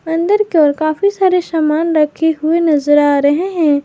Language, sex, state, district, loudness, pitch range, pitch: Hindi, female, Jharkhand, Garhwa, -13 LUFS, 300-340 Hz, 320 Hz